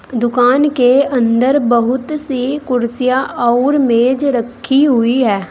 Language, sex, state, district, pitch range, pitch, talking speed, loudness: Hindi, female, Uttar Pradesh, Saharanpur, 240-270 Hz, 255 Hz, 120 wpm, -13 LUFS